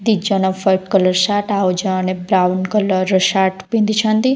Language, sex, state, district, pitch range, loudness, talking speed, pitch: Odia, female, Odisha, Khordha, 185-210 Hz, -16 LUFS, 150 wpm, 190 Hz